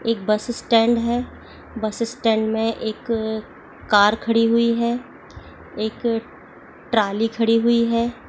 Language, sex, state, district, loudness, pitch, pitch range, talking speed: Hindi, female, West Bengal, Purulia, -20 LUFS, 230 Hz, 220-235 Hz, 125 wpm